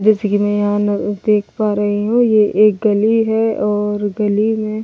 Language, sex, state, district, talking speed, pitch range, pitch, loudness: Hindi, female, Delhi, New Delhi, 200 wpm, 205-215 Hz, 210 Hz, -15 LUFS